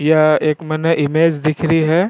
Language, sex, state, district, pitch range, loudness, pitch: Rajasthani, male, Rajasthan, Churu, 155-165 Hz, -15 LUFS, 160 Hz